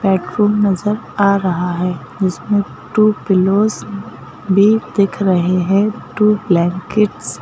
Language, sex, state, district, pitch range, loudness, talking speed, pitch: Hindi, female, Madhya Pradesh, Bhopal, 180-210 Hz, -15 LUFS, 120 wpm, 200 Hz